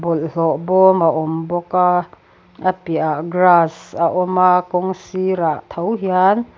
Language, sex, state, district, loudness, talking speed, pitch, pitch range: Mizo, female, Mizoram, Aizawl, -17 LUFS, 135 wpm, 180 Hz, 165-185 Hz